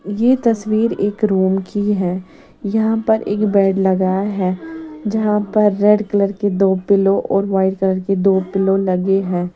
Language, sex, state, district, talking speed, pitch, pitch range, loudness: Hindi, female, Odisha, Sambalpur, 170 wpm, 195 Hz, 190-210 Hz, -17 LUFS